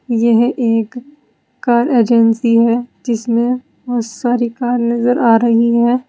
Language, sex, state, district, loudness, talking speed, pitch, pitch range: Hindi, female, Uttar Pradesh, Saharanpur, -14 LUFS, 130 wpm, 235 Hz, 230-245 Hz